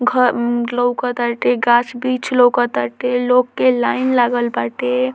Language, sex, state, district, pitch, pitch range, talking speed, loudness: Bhojpuri, female, Bihar, Muzaffarpur, 245 Hz, 240-250 Hz, 140 wpm, -16 LUFS